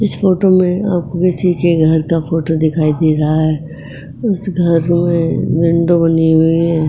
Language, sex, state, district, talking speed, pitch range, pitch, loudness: Hindi, female, Uttar Pradesh, Etah, 175 wpm, 160-180 Hz, 165 Hz, -14 LUFS